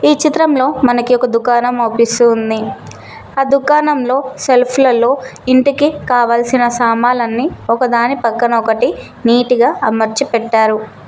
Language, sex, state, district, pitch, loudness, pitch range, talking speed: Telugu, female, Telangana, Mahabubabad, 245 Hz, -13 LUFS, 230-270 Hz, 110 wpm